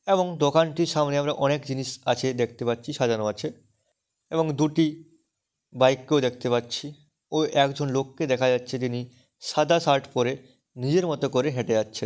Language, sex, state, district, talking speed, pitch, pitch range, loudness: Bengali, male, West Bengal, Dakshin Dinajpur, 160 wpm, 135 Hz, 125-150 Hz, -25 LUFS